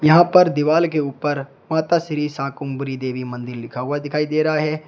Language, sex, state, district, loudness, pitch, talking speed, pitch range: Hindi, male, Uttar Pradesh, Shamli, -20 LUFS, 150 Hz, 195 wpm, 135-155 Hz